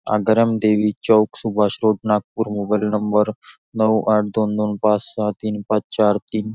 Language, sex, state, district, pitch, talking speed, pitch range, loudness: Marathi, male, Maharashtra, Nagpur, 105 Hz, 175 wpm, 105-110 Hz, -19 LUFS